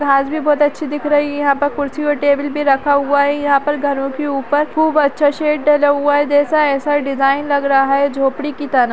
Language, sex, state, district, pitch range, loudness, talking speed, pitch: Hindi, female, Uttarakhand, Tehri Garhwal, 280-295 Hz, -15 LUFS, 250 wpm, 290 Hz